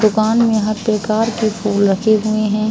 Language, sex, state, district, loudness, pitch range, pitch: Hindi, female, Uttar Pradesh, Budaun, -16 LUFS, 210-220 Hz, 215 Hz